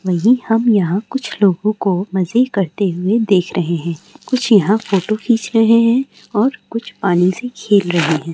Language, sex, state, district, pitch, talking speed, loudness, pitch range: Hindi, female, Uttarakhand, Uttarkashi, 205 Hz, 180 wpm, -16 LUFS, 185-230 Hz